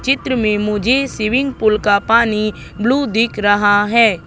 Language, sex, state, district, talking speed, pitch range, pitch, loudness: Hindi, female, Madhya Pradesh, Katni, 155 wpm, 210-245 Hz, 215 Hz, -15 LUFS